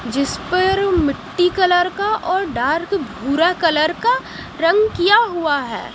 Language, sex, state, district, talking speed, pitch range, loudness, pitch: Hindi, female, Haryana, Jhajjar, 140 wpm, 300-385 Hz, -17 LUFS, 355 Hz